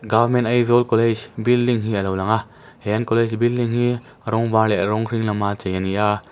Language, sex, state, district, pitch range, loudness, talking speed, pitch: Mizo, male, Mizoram, Aizawl, 105-120 Hz, -19 LUFS, 220 wpm, 115 Hz